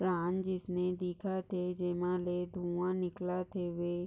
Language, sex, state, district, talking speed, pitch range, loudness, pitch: Hindi, female, Maharashtra, Chandrapur, 120 wpm, 175-185 Hz, -36 LUFS, 180 Hz